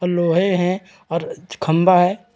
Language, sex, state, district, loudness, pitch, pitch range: Hindi, male, Chhattisgarh, Raigarh, -18 LUFS, 180 Hz, 170-190 Hz